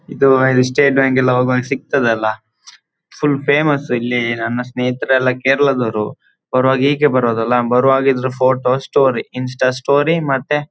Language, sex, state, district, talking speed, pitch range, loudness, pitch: Kannada, male, Karnataka, Dakshina Kannada, 125 wpm, 125-135 Hz, -15 LUFS, 130 Hz